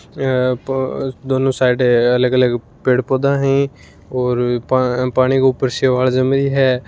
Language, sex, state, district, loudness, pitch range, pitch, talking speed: Hindi, male, Rajasthan, Churu, -16 LUFS, 125-135 Hz, 130 Hz, 150 wpm